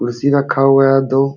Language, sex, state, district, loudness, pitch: Hindi, male, Uttar Pradesh, Jalaun, -13 LUFS, 135 Hz